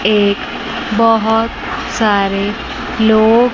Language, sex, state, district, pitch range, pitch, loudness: Hindi, male, Chandigarh, Chandigarh, 205-230 Hz, 220 Hz, -14 LUFS